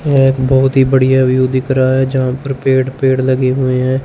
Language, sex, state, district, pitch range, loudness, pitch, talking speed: Hindi, male, Chandigarh, Chandigarh, 130-135 Hz, -13 LUFS, 130 Hz, 235 wpm